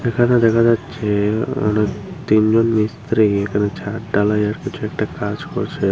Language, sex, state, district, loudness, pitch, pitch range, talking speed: Bengali, female, Tripura, Unakoti, -18 LUFS, 110 Hz, 105-115 Hz, 130 wpm